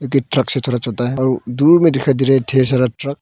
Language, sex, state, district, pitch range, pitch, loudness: Hindi, male, Arunachal Pradesh, Longding, 125-140 Hz, 130 Hz, -15 LUFS